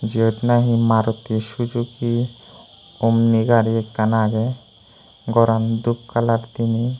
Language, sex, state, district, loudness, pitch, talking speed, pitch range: Chakma, male, Tripura, Unakoti, -19 LUFS, 115 Hz, 105 wpm, 110-120 Hz